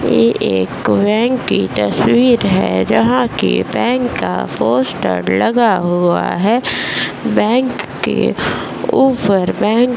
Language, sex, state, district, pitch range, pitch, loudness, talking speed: Hindi, female, Bihar, Bhagalpur, 185-245 Hz, 230 Hz, -14 LUFS, 120 wpm